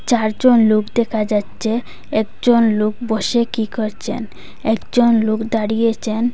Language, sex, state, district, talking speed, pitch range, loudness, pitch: Bengali, female, Assam, Hailakandi, 115 wpm, 215-235 Hz, -17 LUFS, 220 Hz